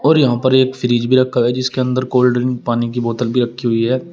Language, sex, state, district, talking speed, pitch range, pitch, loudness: Hindi, male, Uttar Pradesh, Shamli, 275 wpm, 120-130 Hz, 125 Hz, -16 LUFS